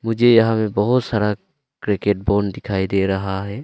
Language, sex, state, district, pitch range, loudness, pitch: Hindi, male, Arunachal Pradesh, Longding, 95-115 Hz, -19 LUFS, 105 Hz